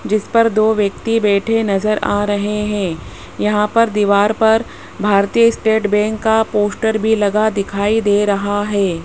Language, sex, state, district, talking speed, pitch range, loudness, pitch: Hindi, female, Rajasthan, Jaipur, 160 wpm, 205-220 Hz, -15 LUFS, 210 Hz